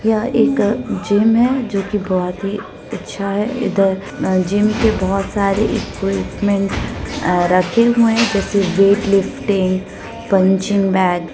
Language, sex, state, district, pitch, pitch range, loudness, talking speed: Hindi, female, Bihar, Muzaffarpur, 200 Hz, 190-215 Hz, -16 LUFS, 130 wpm